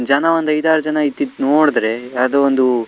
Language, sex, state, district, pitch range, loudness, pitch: Kannada, male, Karnataka, Shimoga, 130-155 Hz, -16 LUFS, 140 Hz